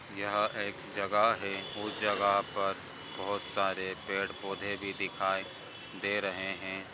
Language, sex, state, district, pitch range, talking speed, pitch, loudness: Hindi, male, Bihar, Jamui, 95-100 Hz, 130 wpm, 100 Hz, -33 LUFS